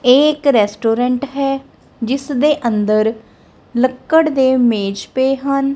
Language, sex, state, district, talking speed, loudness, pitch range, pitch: Punjabi, female, Punjab, Kapurthala, 125 wpm, -16 LUFS, 230-275 Hz, 260 Hz